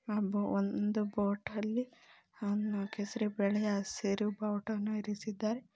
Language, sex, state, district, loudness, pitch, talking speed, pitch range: Kannada, female, Karnataka, Belgaum, -35 LUFS, 210 Hz, 85 wpm, 205-215 Hz